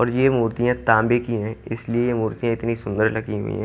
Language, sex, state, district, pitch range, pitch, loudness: Hindi, male, Haryana, Jhajjar, 110-120 Hz, 115 Hz, -22 LUFS